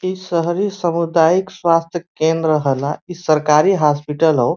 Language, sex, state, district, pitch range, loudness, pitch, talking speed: Bhojpuri, male, Uttar Pradesh, Varanasi, 150-175 Hz, -17 LUFS, 165 Hz, 130 wpm